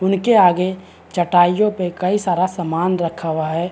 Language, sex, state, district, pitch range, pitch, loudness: Hindi, male, Chhattisgarh, Bilaspur, 170-185 Hz, 180 Hz, -17 LUFS